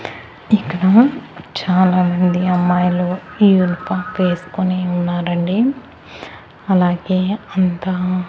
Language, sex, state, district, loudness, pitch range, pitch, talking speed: Telugu, female, Andhra Pradesh, Annamaya, -16 LUFS, 180-190 Hz, 185 Hz, 70 wpm